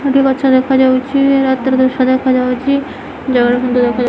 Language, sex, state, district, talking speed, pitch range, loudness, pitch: Odia, female, Odisha, Khordha, 105 wpm, 250-270 Hz, -13 LUFS, 260 Hz